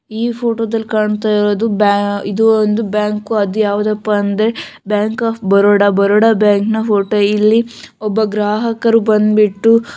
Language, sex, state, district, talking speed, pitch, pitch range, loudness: Kannada, female, Karnataka, Shimoga, 140 wpm, 215 Hz, 205-225 Hz, -14 LUFS